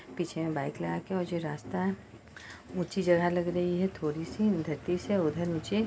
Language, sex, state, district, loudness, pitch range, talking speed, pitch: Hindi, female, Bihar, Purnia, -31 LUFS, 160-185 Hz, 185 wpm, 175 Hz